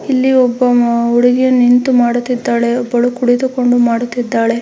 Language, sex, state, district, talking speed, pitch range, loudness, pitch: Kannada, female, Karnataka, Mysore, 115 wpm, 240-250 Hz, -12 LUFS, 245 Hz